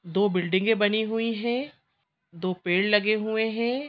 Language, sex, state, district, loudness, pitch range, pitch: Hindi, female, Chhattisgarh, Sukma, -25 LUFS, 185-225 Hz, 215 Hz